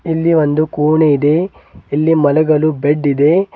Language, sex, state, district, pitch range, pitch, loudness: Kannada, male, Karnataka, Bidar, 145-160 Hz, 155 Hz, -13 LUFS